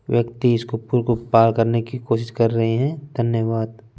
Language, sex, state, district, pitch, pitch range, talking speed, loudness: Hindi, male, Punjab, Fazilka, 115 Hz, 115-120 Hz, 210 wpm, -20 LUFS